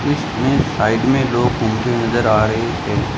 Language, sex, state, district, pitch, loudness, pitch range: Hindi, male, Rajasthan, Bikaner, 120 Hz, -17 LUFS, 110-125 Hz